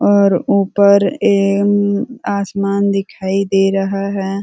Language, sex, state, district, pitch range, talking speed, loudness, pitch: Hindi, female, Uttar Pradesh, Ghazipur, 195-200 Hz, 120 wpm, -15 LUFS, 200 Hz